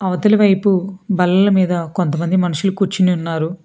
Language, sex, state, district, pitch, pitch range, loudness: Telugu, female, Telangana, Hyderabad, 185 Hz, 175-195 Hz, -16 LUFS